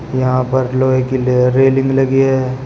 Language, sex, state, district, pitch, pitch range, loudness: Hindi, male, Uttar Pradesh, Shamli, 130 Hz, 130-135 Hz, -14 LUFS